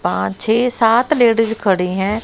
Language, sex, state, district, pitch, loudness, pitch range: Hindi, female, Haryana, Rohtak, 225 Hz, -15 LUFS, 200-235 Hz